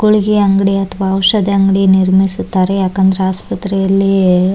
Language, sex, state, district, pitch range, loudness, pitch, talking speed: Kannada, male, Karnataka, Bellary, 190-195 Hz, -12 LUFS, 195 Hz, 120 wpm